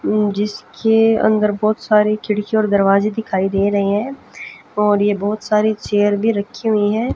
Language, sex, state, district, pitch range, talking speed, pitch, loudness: Hindi, female, Haryana, Jhajjar, 205-215 Hz, 175 wpm, 210 Hz, -17 LUFS